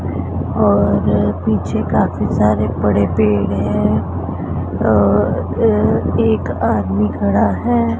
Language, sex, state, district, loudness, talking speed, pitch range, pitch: Hindi, male, Punjab, Pathankot, -16 LUFS, 90 wpm, 90-105 Hz, 100 Hz